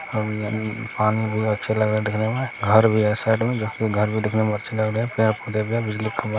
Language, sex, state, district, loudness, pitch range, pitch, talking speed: Hindi, male, Bihar, Bhagalpur, -22 LUFS, 105-110 Hz, 110 Hz, 260 wpm